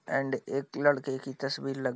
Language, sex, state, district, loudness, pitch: Hindi, male, Bihar, Bhagalpur, -31 LUFS, 135 Hz